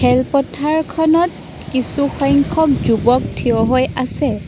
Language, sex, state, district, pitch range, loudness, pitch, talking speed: Assamese, female, Assam, Sonitpur, 250-305 Hz, -16 LUFS, 275 Hz, 95 wpm